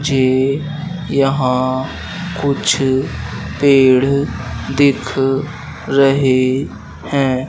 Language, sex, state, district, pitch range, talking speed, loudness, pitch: Hindi, male, Madhya Pradesh, Dhar, 130-140 Hz, 55 wpm, -16 LUFS, 135 Hz